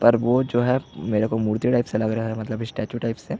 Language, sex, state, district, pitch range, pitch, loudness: Hindi, male, Chhattisgarh, Jashpur, 110-120 Hz, 115 Hz, -23 LUFS